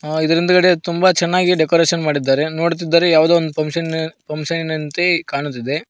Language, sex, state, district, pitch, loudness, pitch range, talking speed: Kannada, male, Karnataka, Koppal, 165 Hz, -16 LUFS, 155-170 Hz, 120 wpm